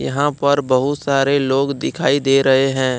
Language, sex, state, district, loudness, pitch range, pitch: Hindi, male, Jharkhand, Deoghar, -16 LUFS, 135-140 Hz, 135 Hz